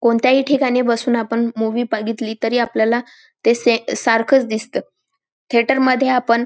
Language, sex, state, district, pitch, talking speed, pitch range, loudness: Marathi, female, Maharashtra, Dhule, 240 Hz, 140 wpm, 230-260 Hz, -17 LUFS